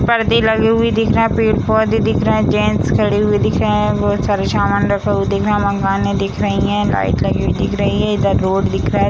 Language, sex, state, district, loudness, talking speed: Hindi, female, Bihar, Sitamarhi, -15 LUFS, 310 wpm